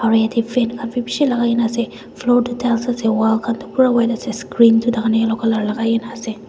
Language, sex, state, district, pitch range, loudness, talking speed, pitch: Nagamese, female, Nagaland, Dimapur, 225-240 Hz, -17 LUFS, 250 wpm, 230 Hz